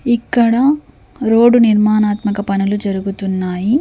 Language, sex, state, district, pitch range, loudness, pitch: Telugu, female, Andhra Pradesh, Sri Satya Sai, 195-235 Hz, -14 LUFS, 215 Hz